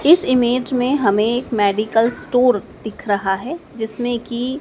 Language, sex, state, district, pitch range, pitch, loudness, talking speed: Hindi, male, Madhya Pradesh, Dhar, 220-255 Hz, 240 Hz, -18 LUFS, 155 wpm